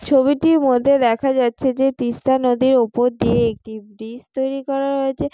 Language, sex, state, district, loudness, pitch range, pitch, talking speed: Bengali, female, West Bengal, Jalpaiguri, -18 LUFS, 240-275 Hz, 260 Hz, 155 wpm